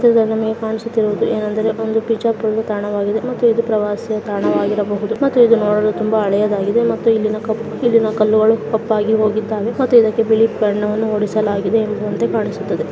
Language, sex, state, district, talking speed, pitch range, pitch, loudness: Kannada, male, Karnataka, Bijapur, 120 wpm, 210-225 Hz, 220 Hz, -16 LUFS